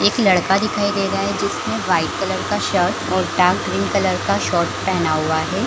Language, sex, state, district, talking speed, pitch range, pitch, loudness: Hindi, female, Chhattisgarh, Bilaspur, 210 wpm, 160-205 Hz, 190 Hz, -18 LUFS